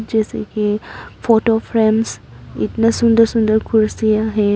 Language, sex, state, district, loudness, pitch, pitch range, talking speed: Hindi, female, Arunachal Pradesh, Papum Pare, -16 LUFS, 220 Hz, 210-225 Hz, 120 wpm